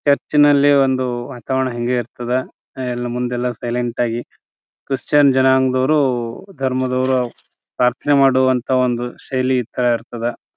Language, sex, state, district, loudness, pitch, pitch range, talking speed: Kannada, male, Karnataka, Bijapur, -18 LUFS, 130 Hz, 120-130 Hz, 115 wpm